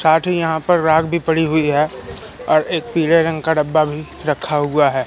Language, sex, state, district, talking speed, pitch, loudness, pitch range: Hindi, male, Madhya Pradesh, Katni, 215 wpm, 160 Hz, -17 LUFS, 150-165 Hz